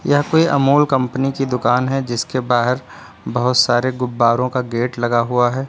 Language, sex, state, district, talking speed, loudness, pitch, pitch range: Hindi, male, Uttar Pradesh, Lucknow, 180 wpm, -17 LUFS, 125 Hz, 120-135 Hz